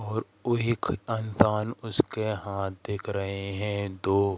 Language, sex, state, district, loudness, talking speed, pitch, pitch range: Hindi, female, Madhya Pradesh, Katni, -29 LUFS, 125 wpm, 105 Hz, 100-110 Hz